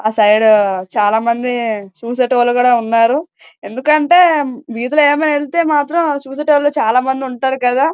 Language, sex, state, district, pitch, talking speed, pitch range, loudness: Telugu, female, Andhra Pradesh, Srikakulam, 255 Hz, 105 wpm, 230-295 Hz, -14 LUFS